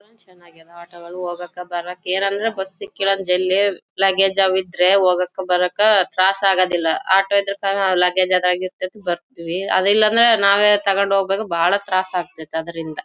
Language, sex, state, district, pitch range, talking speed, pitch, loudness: Kannada, female, Karnataka, Bellary, 180-195 Hz, 140 wpm, 185 Hz, -18 LUFS